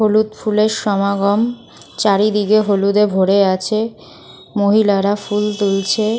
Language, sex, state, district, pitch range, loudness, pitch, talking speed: Bengali, female, West Bengal, North 24 Parganas, 200-215 Hz, -16 LUFS, 210 Hz, 115 wpm